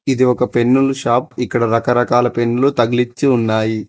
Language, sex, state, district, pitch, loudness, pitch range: Telugu, male, Telangana, Mahabubabad, 120 Hz, -15 LUFS, 120-130 Hz